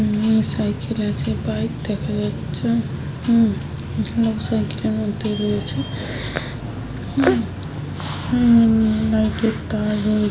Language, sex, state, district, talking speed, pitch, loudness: Bengali, female, West Bengal, Paschim Medinipur, 85 wpm, 125 Hz, -21 LUFS